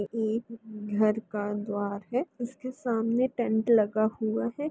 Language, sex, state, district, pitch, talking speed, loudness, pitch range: Hindi, female, Uttar Pradesh, Varanasi, 225 Hz, 140 wpm, -29 LUFS, 215-240 Hz